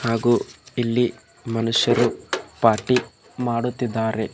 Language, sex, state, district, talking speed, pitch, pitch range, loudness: Kannada, male, Karnataka, Bidar, 70 wpm, 115 Hz, 115-120 Hz, -22 LUFS